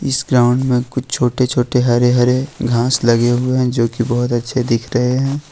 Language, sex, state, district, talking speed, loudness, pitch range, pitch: Hindi, male, Jharkhand, Ranchi, 205 wpm, -16 LUFS, 120-130 Hz, 125 Hz